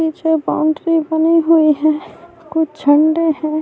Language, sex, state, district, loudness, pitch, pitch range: Urdu, female, Bihar, Saharsa, -15 LUFS, 315 Hz, 310-325 Hz